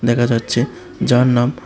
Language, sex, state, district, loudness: Bengali, male, Tripura, West Tripura, -17 LUFS